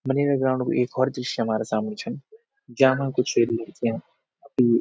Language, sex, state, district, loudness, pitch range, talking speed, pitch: Garhwali, male, Uttarakhand, Uttarkashi, -24 LUFS, 115-140 Hz, 175 wpm, 130 Hz